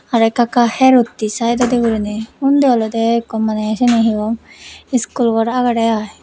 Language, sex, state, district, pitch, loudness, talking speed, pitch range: Chakma, female, Tripura, West Tripura, 230 Hz, -15 LUFS, 165 wpm, 220-245 Hz